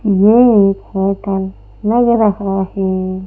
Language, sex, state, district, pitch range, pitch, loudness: Hindi, female, Madhya Pradesh, Bhopal, 190-215 Hz, 195 Hz, -14 LUFS